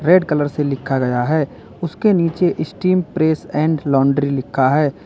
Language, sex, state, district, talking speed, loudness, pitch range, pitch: Hindi, male, Uttar Pradesh, Lalitpur, 165 wpm, -18 LUFS, 135-170 Hz, 150 Hz